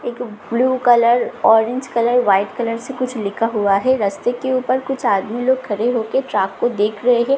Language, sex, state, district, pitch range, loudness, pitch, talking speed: Hindi, female, Bihar, Katihar, 215-255 Hz, -17 LUFS, 240 Hz, 220 wpm